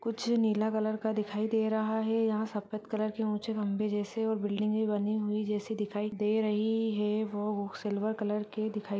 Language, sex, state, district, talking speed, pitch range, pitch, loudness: Hindi, female, Rajasthan, Churu, 200 wpm, 210-220 Hz, 215 Hz, -32 LUFS